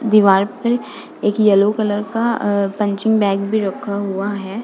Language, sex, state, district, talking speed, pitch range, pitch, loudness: Hindi, female, Uttar Pradesh, Budaun, 170 wpm, 200-220 Hz, 205 Hz, -17 LUFS